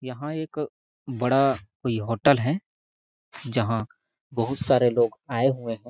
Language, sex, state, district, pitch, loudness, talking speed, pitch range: Hindi, male, Chhattisgarh, Sarguja, 125 Hz, -25 LUFS, 130 wpm, 120-135 Hz